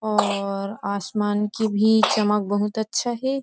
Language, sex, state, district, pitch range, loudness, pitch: Hindi, female, Chhattisgarh, Rajnandgaon, 205-220 Hz, -22 LUFS, 210 Hz